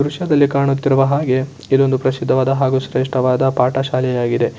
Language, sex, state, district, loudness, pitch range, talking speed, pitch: Kannada, male, Karnataka, Shimoga, -16 LUFS, 130-140 Hz, 130 wpm, 135 Hz